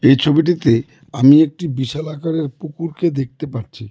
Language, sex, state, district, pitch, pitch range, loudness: Bengali, male, West Bengal, Cooch Behar, 150 Hz, 135-160 Hz, -17 LUFS